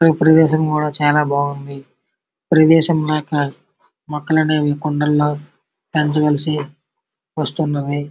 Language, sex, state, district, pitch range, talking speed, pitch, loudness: Telugu, male, Andhra Pradesh, Srikakulam, 145-155 Hz, 75 wpm, 150 Hz, -16 LUFS